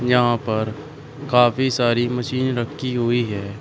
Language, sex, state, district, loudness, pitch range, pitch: Hindi, male, Uttar Pradesh, Shamli, -20 LUFS, 120-130 Hz, 120 Hz